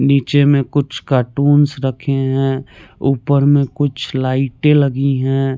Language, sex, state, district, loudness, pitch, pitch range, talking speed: Hindi, male, Chandigarh, Chandigarh, -15 LUFS, 135 Hz, 130-145 Hz, 130 wpm